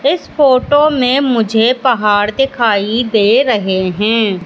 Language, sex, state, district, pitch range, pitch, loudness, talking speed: Hindi, female, Madhya Pradesh, Katni, 205-260 Hz, 230 Hz, -12 LUFS, 120 wpm